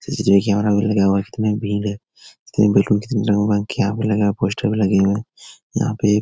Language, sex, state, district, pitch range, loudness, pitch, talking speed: Hindi, male, Bihar, Jahanabad, 100-105 Hz, -19 LUFS, 105 Hz, 210 wpm